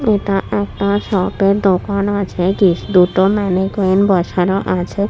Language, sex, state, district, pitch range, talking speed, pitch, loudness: Bengali, female, West Bengal, Purulia, 185-200 Hz, 130 wpm, 195 Hz, -15 LUFS